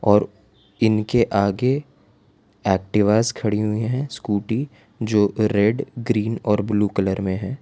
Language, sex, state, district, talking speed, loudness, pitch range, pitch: Hindi, male, Gujarat, Valsad, 125 wpm, -21 LUFS, 105-115 Hz, 105 Hz